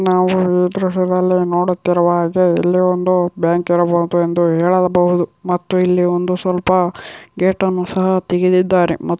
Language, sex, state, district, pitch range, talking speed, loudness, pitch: Kannada, female, Karnataka, Shimoga, 175-185 Hz, 125 wpm, -15 LUFS, 180 Hz